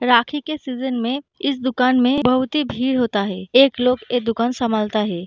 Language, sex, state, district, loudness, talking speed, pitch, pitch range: Hindi, female, Bihar, Darbhanga, -19 LUFS, 205 wpm, 250 Hz, 235-260 Hz